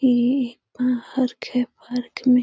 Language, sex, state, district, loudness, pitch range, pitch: Hindi, female, Bihar, Gaya, -23 LUFS, 245-255 Hz, 250 Hz